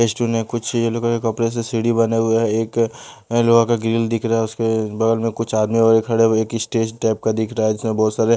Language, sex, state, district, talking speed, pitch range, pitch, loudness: Hindi, male, Bihar, West Champaran, 250 wpm, 110-115 Hz, 115 Hz, -19 LUFS